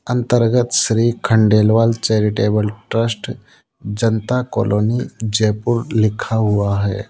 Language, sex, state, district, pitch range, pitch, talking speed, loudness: Hindi, male, Rajasthan, Jaipur, 105-115 Hz, 110 Hz, 95 wpm, -17 LUFS